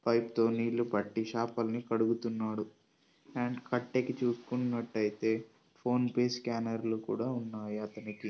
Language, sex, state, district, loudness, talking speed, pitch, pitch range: Telugu, male, Telangana, Karimnagar, -34 LUFS, 115 wpm, 115 Hz, 110-120 Hz